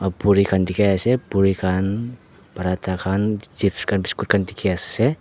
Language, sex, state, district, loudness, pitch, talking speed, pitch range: Nagamese, male, Nagaland, Dimapur, -21 LUFS, 100 Hz, 175 wpm, 95-105 Hz